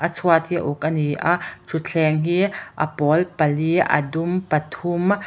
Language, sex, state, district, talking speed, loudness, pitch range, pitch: Mizo, female, Mizoram, Aizawl, 170 wpm, -21 LUFS, 155-175 Hz, 165 Hz